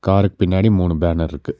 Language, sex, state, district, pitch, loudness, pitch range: Tamil, male, Tamil Nadu, Nilgiris, 95 Hz, -17 LUFS, 85-95 Hz